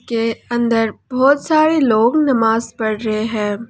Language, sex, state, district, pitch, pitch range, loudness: Hindi, female, Jharkhand, Ranchi, 230 Hz, 220-265 Hz, -16 LUFS